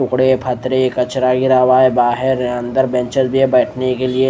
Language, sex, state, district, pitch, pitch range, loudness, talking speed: Hindi, male, Odisha, Nuapada, 130 Hz, 125-130 Hz, -15 LUFS, 195 wpm